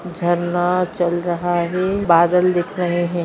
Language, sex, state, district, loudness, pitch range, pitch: Hindi, male, Bihar, Purnia, -18 LUFS, 175-180 Hz, 175 Hz